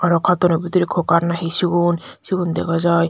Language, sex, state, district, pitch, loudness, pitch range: Chakma, female, Tripura, Dhalai, 175 Hz, -18 LUFS, 170-180 Hz